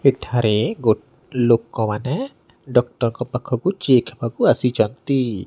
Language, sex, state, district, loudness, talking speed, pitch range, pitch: Odia, male, Odisha, Nuapada, -20 LUFS, 100 wpm, 115-130 Hz, 125 Hz